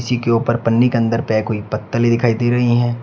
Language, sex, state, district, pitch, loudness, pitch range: Hindi, male, Uttar Pradesh, Shamli, 120 Hz, -17 LUFS, 115-120 Hz